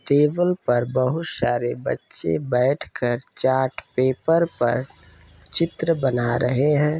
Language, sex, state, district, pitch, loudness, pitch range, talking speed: Hindi, male, Uttar Pradesh, Etah, 130 Hz, -22 LUFS, 120-150 Hz, 130 wpm